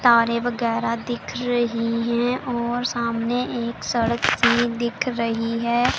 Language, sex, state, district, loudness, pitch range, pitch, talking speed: Hindi, female, Punjab, Pathankot, -22 LUFS, 230-240 Hz, 235 Hz, 130 wpm